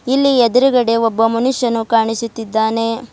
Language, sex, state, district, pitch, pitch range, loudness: Kannada, female, Karnataka, Bidar, 230 Hz, 225-250 Hz, -15 LUFS